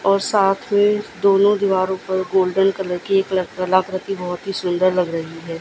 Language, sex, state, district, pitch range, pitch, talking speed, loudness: Hindi, female, Gujarat, Gandhinagar, 185-195 Hz, 190 Hz, 180 wpm, -19 LUFS